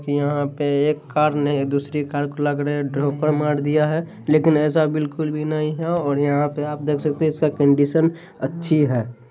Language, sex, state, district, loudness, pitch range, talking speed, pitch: Hindi, male, Bihar, Saharsa, -20 LUFS, 145-155 Hz, 205 wpm, 150 Hz